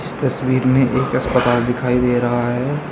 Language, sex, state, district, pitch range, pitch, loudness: Hindi, male, Uttar Pradesh, Saharanpur, 120-130 Hz, 125 Hz, -17 LUFS